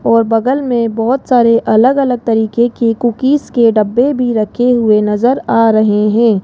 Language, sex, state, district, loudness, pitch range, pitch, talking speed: Hindi, female, Rajasthan, Jaipur, -12 LUFS, 220-250 Hz, 230 Hz, 175 wpm